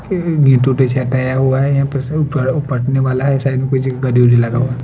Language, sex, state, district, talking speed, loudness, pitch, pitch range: Hindi, male, Punjab, Fazilka, 100 wpm, -15 LUFS, 130 Hz, 130-140 Hz